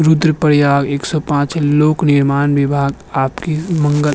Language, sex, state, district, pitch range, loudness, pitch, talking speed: Hindi, male, Uttarakhand, Tehri Garhwal, 140-155 Hz, -14 LUFS, 145 Hz, 145 wpm